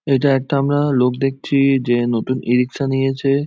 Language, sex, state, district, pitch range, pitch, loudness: Bengali, male, West Bengal, Jhargram, 125-140 Hz, 135 Hz, -17 LUFS